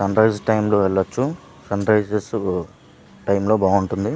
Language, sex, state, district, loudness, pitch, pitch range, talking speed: Telugu, male, Andhra Pradesh, Guntur, -20 LUFS, 105 Hz, 100-110 Hz, 145 wpm